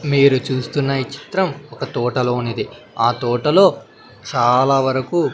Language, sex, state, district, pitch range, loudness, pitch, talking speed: Telugu, male, Andhra Pradesh, Sri Satya Sai, 125-145 Hz, -18 LUFS, 130 Hz, 135 wpm